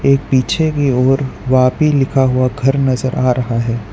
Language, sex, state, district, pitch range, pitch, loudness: Hindi, male, Gujarat, Valsad, 125-135 Hz, 130 Hz, -14 LUFS